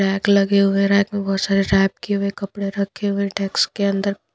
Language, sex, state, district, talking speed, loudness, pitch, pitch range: Hindi, female, Punjab, Pathankot, 260 wpm, -19 LUFS, 200 Hz, 195-200 Hz